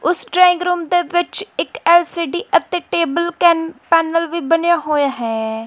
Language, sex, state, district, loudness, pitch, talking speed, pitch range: Punjabi, female, Punjab, Kapurthala, -16 LUFS, 340 Hz, 150 wpm, 325-350 Hz